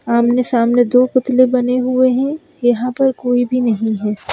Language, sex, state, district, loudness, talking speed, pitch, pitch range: Hindi, female, Madhya Pradesh, Bhopal, -15 LUFS, 165 wpm, 250 Hz, 240-255 Hz